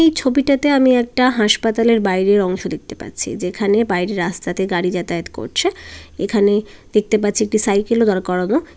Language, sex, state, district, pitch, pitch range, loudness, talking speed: Bengali, female, West Bengal, Dakshin Dinajpur, 210 Hz, 190-240 Hz, -17 LUFS, 165 wpm